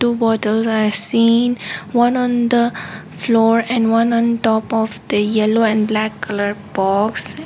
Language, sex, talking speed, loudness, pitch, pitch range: English, female, 145 wpm, -16 LUFS, 225 Hz, 215-235 Hz